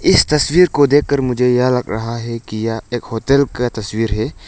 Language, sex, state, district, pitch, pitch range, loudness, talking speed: Hindi, male, Arunachal Pradesh, Lower Dibang Valley, 125 Hz, 115-140 Hz, -16 LUFS, 200 wpm